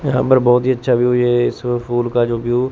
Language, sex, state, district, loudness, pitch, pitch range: Hindi, male, Chandigarh, Chandigarh, -16 LUFS, 125 Hz, 120-130 Hz